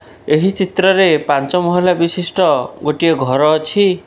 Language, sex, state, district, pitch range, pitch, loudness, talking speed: Odia, male, Odisha, Khordha, 150-190 Hz, 175 Hz, -14 LUFS, 120 wpm